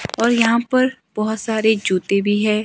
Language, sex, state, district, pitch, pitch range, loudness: Hindi, male, Himachal Pradesh, Shimla, 220 Hz, 210-235 Hz, -18 LUFS